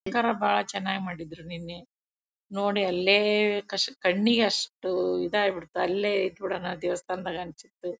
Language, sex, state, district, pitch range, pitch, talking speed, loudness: Kannada, female, Karnataka, Bellary, 175-200 Hz, 185 Hz, 105 wpm, -26 LUFS